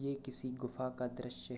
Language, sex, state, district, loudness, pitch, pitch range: Hindi, male, Uttar Pradesh, Jalaun, -36 LUFS, 125 Hz, 125-130 Hz